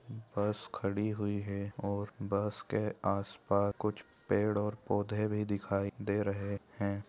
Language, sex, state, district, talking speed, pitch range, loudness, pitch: Hindi, male, Maharashtra, Aurangabad, 135 wpm, 100-105 Hz, -35 LUFS, 100 Hz